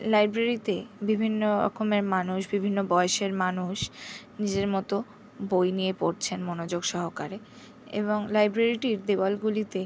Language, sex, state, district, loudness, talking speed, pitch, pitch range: Bengali, female, West Bengal, Jhargram, -27 LUFS, 135 wpm, 200 Hz, 190-215 Hz